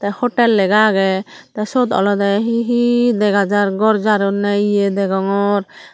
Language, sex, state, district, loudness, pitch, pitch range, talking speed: Chakma, female, Tripura, Dhalai, -16 LUFS, 205 Hz, 200-220 Hz, 150 wpm